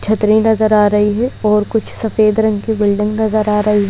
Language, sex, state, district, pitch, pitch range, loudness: Hindi, female, Madhya Pradesh, Bhopal, 215 Hz, 210-220 Hz, -14 LUFS